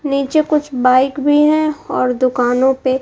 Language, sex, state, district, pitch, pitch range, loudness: Hindi, female, Bihar, Kaimur, 270 Hz, 255-300 Hz, -15 LUFS